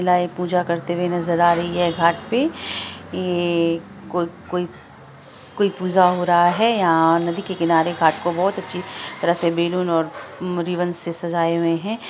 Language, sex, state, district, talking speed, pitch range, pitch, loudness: Hindi, male, Bihar, Araria, 185 wpm, 170-180 Hz, 175 Hz, -20 LUFS